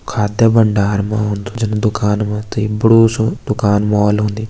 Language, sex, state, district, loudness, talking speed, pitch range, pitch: Hindi, male, Uttarakhand, Tehri Garhwal, -15 LUFS, 200 wpm, 105-110 Hz, 105 Hz